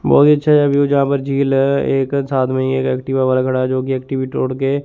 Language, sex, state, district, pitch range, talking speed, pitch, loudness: Hindi, male, Chandigarh, Chandigarh, 130-140 Hz, 275 wpm, 135 Hz, -16 LUFS